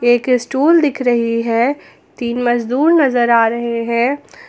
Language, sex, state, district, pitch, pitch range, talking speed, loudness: Hindi, female, Jharkhand, Ranchi, 240 Hz, 235-275 Hz, 145 wpm, -15 LUFS